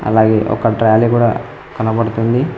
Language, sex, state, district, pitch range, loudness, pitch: Telugu, male, Telangana, Mahabubabad, 110-120 Hz, -14 LUFS, 115 Hz